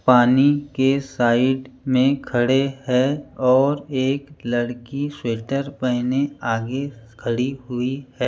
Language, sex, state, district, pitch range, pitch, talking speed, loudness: Hindi, male, Madhya Pradesh, Bhopal, 125-140 Hz, 130 Hz, 110 wpm, -21 LUFS